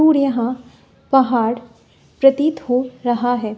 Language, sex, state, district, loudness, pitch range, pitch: Hindi, female, Bihar, West Champaran, -18 LUFS, 240-270 Hz, 250 Hz